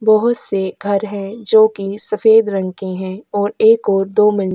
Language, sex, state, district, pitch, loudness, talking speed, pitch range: Hindi, female, Goa, North and South Goa, 205 Hz, -15 LUFS, 200 wpm, 195-220 Hz